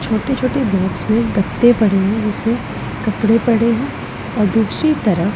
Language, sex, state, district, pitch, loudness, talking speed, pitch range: Hindi, female, Punjab, Pathankot, 220 Hz, -16 LUFS, 155 wpm, 205-240 Hz